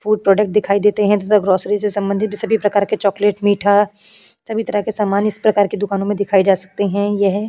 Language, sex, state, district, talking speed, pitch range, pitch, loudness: Hindi, female, Uttar Pradesh, Jyotiba Phule Nagar, 230 wpm, 200-210 Hz, 205 Hz, -16 LUFS